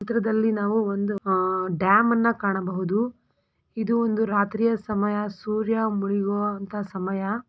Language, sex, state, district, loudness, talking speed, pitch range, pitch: Kannada, female, Karnataka, Belgaum, -24 LUFS, 105 wpm, 200-225 Hz, 210 Hz